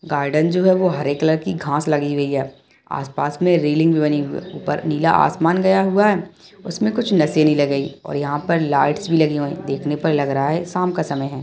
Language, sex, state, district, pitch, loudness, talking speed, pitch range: Hindi, male, Bihar, Kishanganj, 155 Hz, -19 LUFS, 225 wpm, 145-175 Hz